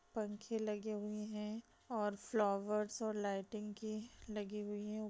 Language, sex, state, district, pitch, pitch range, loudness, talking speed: Hindi, female, Bihar, East Champaran, 210 Hz, 210-215 Hz, -42 LUFS, 140 wpm